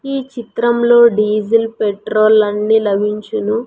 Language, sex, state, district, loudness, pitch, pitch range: Telugu, female, Andhra Pradesh, Sri Satya Sai, -14 LUFS, 220 Hz, 210-235 Hz